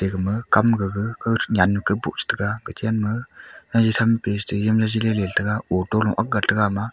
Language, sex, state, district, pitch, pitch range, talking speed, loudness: Wancho, male, Arunachal Pradesh, Longding, 105 Hz, 100-110 Hz, 80 wpm, -21 LUFS